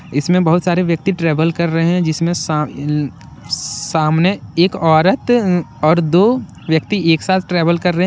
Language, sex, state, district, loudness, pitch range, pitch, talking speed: Hindi, male, Jharkhand, Deoghar, -15 LUFS, 160-180 Hz, 170 Hz, 155 wpm